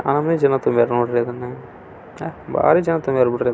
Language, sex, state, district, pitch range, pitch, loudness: Kannada, male, Karnataka, Belgaum, 120-140 Hz, 125 Hz, -18 LUFS